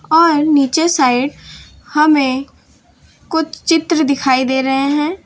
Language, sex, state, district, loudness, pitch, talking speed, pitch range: Hindi, female, Gujarat, Valsad, -14 LUFS, 295 Hz, 115 wpm, 270-320 Hz